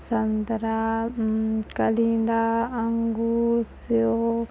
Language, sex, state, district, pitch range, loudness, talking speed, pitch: Hindi, female, Maharashtra, Solapur, 225-230 Hz, -24 LUFS, 65 wpm, 230 Hz